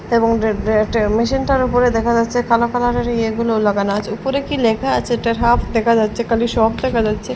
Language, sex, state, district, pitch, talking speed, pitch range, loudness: Bengali, female, Assam, Hailakandi, 230 Hz, 205 wpm, 220-245 Hz, -17 LUFS